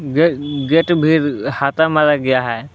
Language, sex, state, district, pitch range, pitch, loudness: Hindi, male, Jharkhand, Palamu, 140-160 Hz, 145 Hz, -15 LUFS